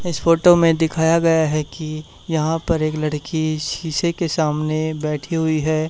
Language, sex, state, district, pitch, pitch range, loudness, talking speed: Hindi, male, Haryana, Charkhi Dadri, 160 Hz, 155-165 Hz, -19 LUFS, 175 wpm